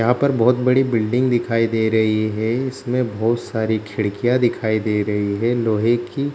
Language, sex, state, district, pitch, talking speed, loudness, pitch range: Hindi, male, Bihar, Jahanabad, 115 Hz, 190 wpm, -19 LUFS, 110-125 Hz